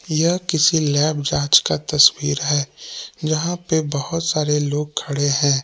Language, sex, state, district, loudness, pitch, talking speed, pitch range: Hindi, male, Jharkhand, Palamu, -18 LUFS, 150 Hz, 150 wpm, 145-160 Hz